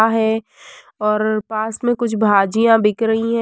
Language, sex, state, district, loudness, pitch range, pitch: Hindi, female, Uttar Pradesh, Varanasi, -17 LUFS, 215-225 Hz, 220 Hz